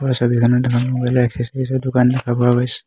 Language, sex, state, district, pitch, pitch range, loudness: Assamese, male, Assam, Hailakandi, 125 Hz, 120-130 Hz, -17 LUFS